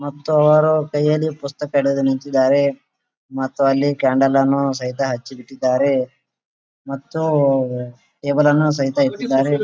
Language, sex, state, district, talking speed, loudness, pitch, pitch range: Kannada, male, Karnataka, Gulbarga, 120 wpm, -18 LUFS, 140 Hz, 135-145 Hz